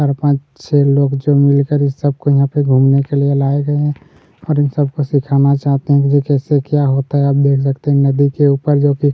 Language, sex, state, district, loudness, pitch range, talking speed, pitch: Hindi, male, Chhattisgarh, Kabirdham, -14 LUFS, 140-145 Hz, 250 wpm, 140 Hz